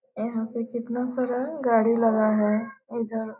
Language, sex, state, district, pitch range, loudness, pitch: Hindi, female, Bihar, Gopalganj, 225-245 Hz, -25 LUFS, 230 Hz